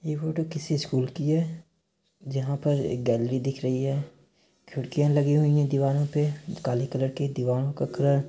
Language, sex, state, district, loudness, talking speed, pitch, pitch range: Hindi, male, Bihar, East Champaran, -27 LUFS, 190 wpm, 140 Hz, 135-150 Hz